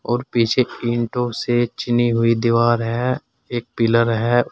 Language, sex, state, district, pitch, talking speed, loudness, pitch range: Hindi, male, Uttar Pradesh, Saharanpur, 120 Hz, 145 wpm, -19 LUFS, 115-120 Hz